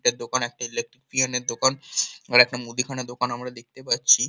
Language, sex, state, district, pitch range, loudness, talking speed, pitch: Bengali, male, West Bengal, Kolkata, 120-130 Hz, -23 LUFS, 155 wpm, 125 Hz